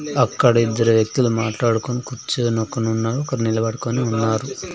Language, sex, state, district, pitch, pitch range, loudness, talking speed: Telugu, male, Andhra Pradesh, Sri Satya Sai, 115 Hz, 115-125 Hz, -20 LUFS, 125 wpm